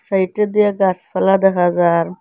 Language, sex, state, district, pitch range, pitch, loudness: Bengali, female, Assam, Hailakandi, 180-205 Hz, 190 Hz, -16 LUFS